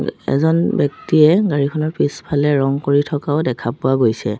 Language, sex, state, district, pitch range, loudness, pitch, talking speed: Assamese, female, Assam, Sonitpur, 135-155 Hz, -17 LUFS, 145 Hz, 135 wpm